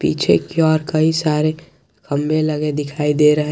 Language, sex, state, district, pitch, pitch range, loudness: Hindi, male, Jharkhand, Garhwa, 155 Hz, 150-155 Hz, -17 LUFS